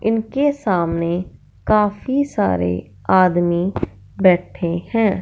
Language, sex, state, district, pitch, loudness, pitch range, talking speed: Hindi, female, Punjab, Fazilka, 180 Hz, -19 LUFS, 170-215 Hz, 80 wpm